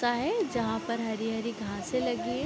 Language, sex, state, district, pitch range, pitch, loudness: Hindi, female, Bihar, East Champaran, 225-245 Hz, 235 Hz, -31 LUFS